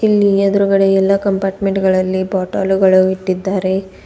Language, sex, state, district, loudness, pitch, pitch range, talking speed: Kannada, female, Karnataka, Bidar, -14 LUFS, 195 Hz, 190-195 Hz, 105 wpm